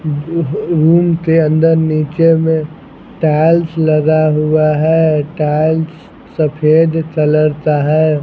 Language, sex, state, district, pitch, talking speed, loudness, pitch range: Hindi, male, Bihar, Patna, 155 Hz, 110 wpm, -13 LUFS, 155-165 Hz